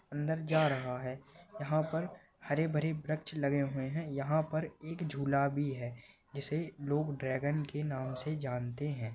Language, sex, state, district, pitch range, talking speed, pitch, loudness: Hindi, male, Maharashtra, Nagpur, 140-155 Hz, 155 wpm, 145 Hz, -35 LUFS